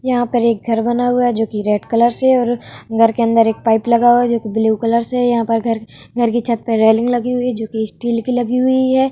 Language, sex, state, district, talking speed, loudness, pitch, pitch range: Hindi, female, Bihar, Vaishali, 300 wpm, -16 LUFS, 235 Hz, 225-245 Hz